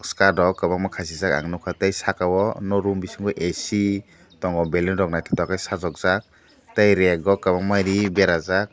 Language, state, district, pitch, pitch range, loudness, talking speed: Kokborok, Tripura, Dhalai, 95 Hz, 90-100 Hz, -22 LUFS, 160 wpm